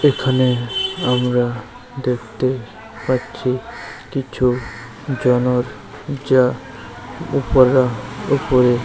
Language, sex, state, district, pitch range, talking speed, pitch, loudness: Bengali, male, West Bengal, Malda, 125-130 Hz, 60 wpm, 125 Hz, -19 LUFS